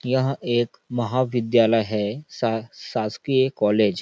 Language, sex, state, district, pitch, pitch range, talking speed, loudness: Hindi, male, Chhattisgarh, Balrampur, 120 Hz, 110-130 Hz, 135 wpm, -23 LUFS